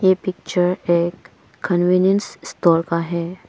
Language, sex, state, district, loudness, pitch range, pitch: Hindi, female, Arunachal Pradesh, Papum Pare, -19 LUFS, 170-185 Hz, 175 Hz